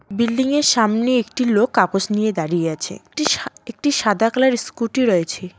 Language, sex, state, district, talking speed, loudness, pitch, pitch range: Bengali, female, West Bengal, Cooch Behar, 160 wpm, -18 LUFS, 230 Hz, 195-255 Hz